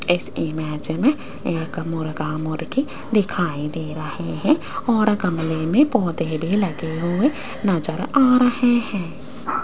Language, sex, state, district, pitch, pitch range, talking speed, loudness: Hindi, female, Rajasthan, Jaipur, 175 Hz, 160-245 Hz, 130 wpm, -21 LUFS